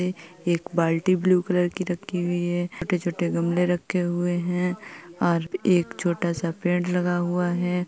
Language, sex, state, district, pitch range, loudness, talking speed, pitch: Hindi, female, Uttar Pradesh, Muzaffarnagar, 175-180 Hz, -25 LUFS, 160 wpm, 175 Hz